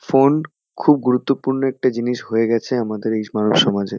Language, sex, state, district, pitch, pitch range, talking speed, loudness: Bengali, male, West Bengal, Kolkata, 125 Hz, 110-135 Hz, 165 wpm, -18 LUFS